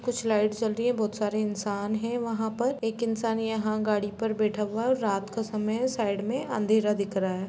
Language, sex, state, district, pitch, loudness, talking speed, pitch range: Hindi, female, Jharkhand, Jamtara, 215 Hz, -28 LUFS, 230 wpm, 210-225 Hz